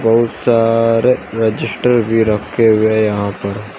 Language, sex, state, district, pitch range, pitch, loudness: Hindi, male, Uttar Pradesh, Shamli, 105-115 Hz, 115 Hz, -14 LUFS